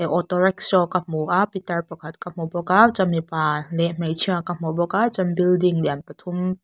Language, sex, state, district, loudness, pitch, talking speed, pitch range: Mizo, female, Mizoram, Aizawl, -21 LUFS, 175 Hz, 190 wpm, 165-185 Hz